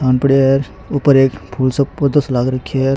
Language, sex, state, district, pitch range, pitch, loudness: Rajasthani, male, Rajasthan, Churu, 130-140 Hz, 135 Hz, -15 LUFS